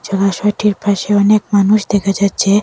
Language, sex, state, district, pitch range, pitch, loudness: Bengali, female, Assam, Hailakandi, 195-210 Hz, 200 Hz, -14 LUFS